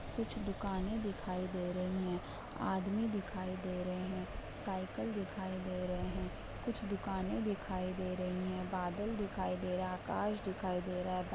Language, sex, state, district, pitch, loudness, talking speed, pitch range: Hindi, female, Uttar Pradesh, Ghazipur, 185 Hz, -39 LUFS, 175 wpm, 185-200 Hz